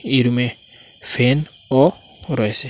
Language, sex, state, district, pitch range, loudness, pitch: Bengali, male, Assam, Hailakandi, 120-135 Hz, -18 LUFS, 125 Hz